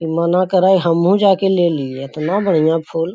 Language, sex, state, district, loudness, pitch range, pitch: Magahi, male, Bihar, Lakhisarai, -15 LUFS, 160-190 Hz, 170 Hz